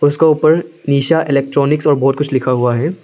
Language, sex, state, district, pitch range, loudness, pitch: Hindi, male, Arunachal Pradesh, Lower Dibang Valley, 135-155 Hz, -14 LUFS, 145 Hz